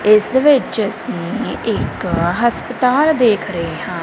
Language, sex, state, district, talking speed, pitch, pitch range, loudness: Punjabi, female, Punjab, Kapurthala, 120 wpm, 220 Hz, 180-250 Hz, -16 LUFS